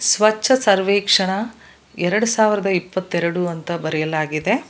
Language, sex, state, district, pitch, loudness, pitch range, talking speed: Kannada, female, Karnataka, Bangalore, 195 Hz, -18 LUFS, 170-215 Hz, 90 wpm